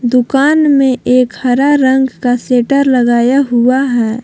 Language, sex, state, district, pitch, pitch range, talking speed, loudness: Hindi, female, Jharkhand, Palamu, 255 Hz, 245-275 Hz, 140 wpm, -11 LUFS